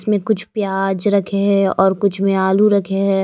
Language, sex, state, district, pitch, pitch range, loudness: Hindi, female, Maharashtra, Mumbai Suburban, 195 Hz, 195-205 Hz, -16 LUFS